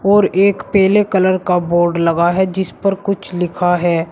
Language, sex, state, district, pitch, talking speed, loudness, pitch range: Hindi, male, Uttar Pradesh, Shamli, 185 Hz, 190 wpm, -15 LUFS, 175-195 Hz